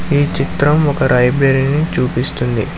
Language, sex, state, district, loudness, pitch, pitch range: Telugu, male, Telangana, Hyderabad, -14 LUFS, 135 Hz, 125-145 Hz